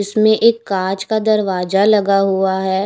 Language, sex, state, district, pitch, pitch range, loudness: Hindi, female, Haryana, Rohtak, 195 Hz, 190-215 Hz, -15 LUFS